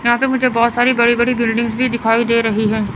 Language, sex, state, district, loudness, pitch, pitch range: Hindi, female, Chandigarh, Chandigarh, -15 LUFS, 235 Hz, 225-240 Hz